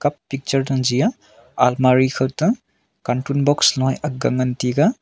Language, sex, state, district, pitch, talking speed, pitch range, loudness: Wancho, male, Arunachal Pradesh, Longding, 135 Hz, 180 wpm, 130-145 Hz, -19 LUFS